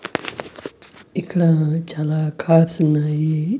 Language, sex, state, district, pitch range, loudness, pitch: Telugu, male, Andhra Pradesh, Annamaya, 155-165 Hz, -19 LUFS, 160 Hz